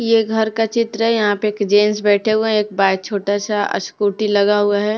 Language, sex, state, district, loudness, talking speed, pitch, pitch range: Hindi, female, Maharashtra, Mumbai Suburban, -17 LUFS, 240 wpm, 210 Hz, 205-220 Hz